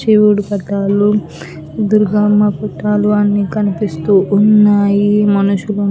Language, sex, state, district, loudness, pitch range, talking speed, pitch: Telugu, female, Andhra Pradesh, Anantapur, -13 LUFS, 200-210 Hz, 90 wpm, 205 Hz